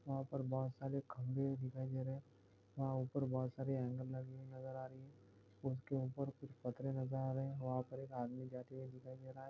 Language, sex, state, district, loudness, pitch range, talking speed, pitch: Hindi, male, Goa, North and South Goa, -45 LUFS, 130-135 Hz, 240 wpm, 130 Hz